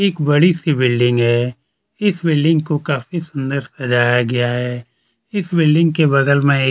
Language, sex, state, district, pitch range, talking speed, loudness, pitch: Hindi, male, Chhattisgarh, Kabirdham, 125-160 Hz, 180 wpm, -16 LUFS, 140 Hz